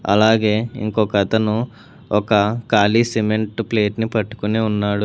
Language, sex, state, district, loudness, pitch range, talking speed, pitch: Telugu, male, Telangana, Hyderabad, -18 LUFS, 105-110 Hz, 95 wpm, 110 Hz